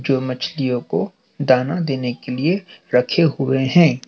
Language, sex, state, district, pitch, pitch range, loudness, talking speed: Hindi, male, Madhya Pradesh, Dhar, 135 Hz, 130-170 Hz, -19 LUFS, 145 wpm